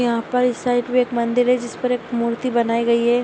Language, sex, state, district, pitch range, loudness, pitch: Hindi, female, Chhattisgarh, Sarguja, 235-250 Hz, -20 LUFS, 240 Hz